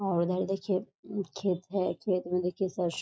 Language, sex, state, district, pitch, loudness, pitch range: Hindi, female, Bihar, East Champaran, 185 Hz, -31 LUFS, 180-195 Hz